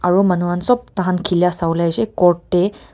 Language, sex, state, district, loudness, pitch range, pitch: Nagamese, female, Nagaland, Kohima, -17 LUFS, 175-190 Hz, 180 Hz